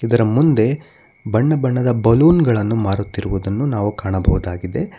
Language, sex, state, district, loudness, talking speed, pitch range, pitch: Kannada, male, Karnataka, Bangalore, -17 LUFS, 110 wpm, 100-140 Hz, 115 Hz